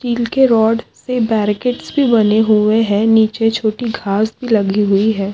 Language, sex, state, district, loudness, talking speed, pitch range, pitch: Hindi, female, Maharashtra, Aurangabad, -14 LUFS, 180 wpm, 210-235 Hz, 220 Hz